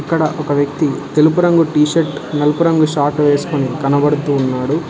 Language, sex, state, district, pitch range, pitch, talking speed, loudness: Telugu, male, Telangana, Hyderabad, 145-155 Hz, 150 Hz, 160 wpm, -15 LUFS